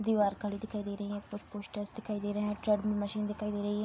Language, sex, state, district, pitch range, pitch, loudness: Hindi, female, Bihar, Bhagalpur, 205-210 Hz, 210 Hz, -35 LUFS